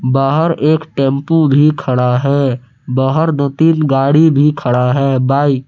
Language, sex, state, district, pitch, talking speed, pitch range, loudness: Hindi, male, Jharkhand, Palamu, 140 Hz, 160 wpm, 130-155 Hz, -13 LUFS